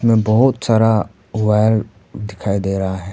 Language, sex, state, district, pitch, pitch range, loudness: Hindi, male, Arunachal Pradesh, Papum Pare, 105 Hz, 100-110 Hz, -16 LUFS